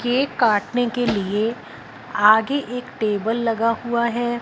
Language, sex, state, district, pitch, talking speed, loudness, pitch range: Hindi, female, Punjab, Fazilka, 235 Hz, 135 wpm, -20 LUFS, 220-245 Hz